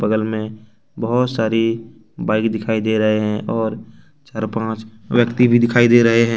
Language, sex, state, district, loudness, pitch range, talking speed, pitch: Hindi, male, Jharkhand, Ranchi, -18 LUFS, 110-115 Hz, 170 wpm, 110 Hz